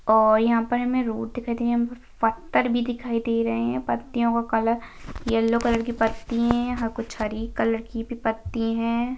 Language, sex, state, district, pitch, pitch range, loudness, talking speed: Hindi, female, Bihar, Gaya, 230 Hz, 225-240 Hz, -24 LUFS, 215 wpm